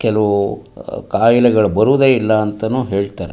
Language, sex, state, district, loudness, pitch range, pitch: Kannada, male, Karnataka, Mysore, -15 LUFS, 100-120 Hz, 110 Hz